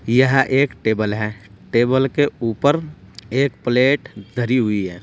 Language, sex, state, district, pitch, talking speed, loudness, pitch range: Hindi, male, Uttar Pradesh, Saharanpur, 120 Hz, 145 wpm, -19 LUFS, 105-135 Hz